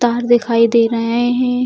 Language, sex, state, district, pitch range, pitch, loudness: Hindi, female, Bihar, Bhagalpur, 230-245 Hz, 240 Hz, -14 LUFS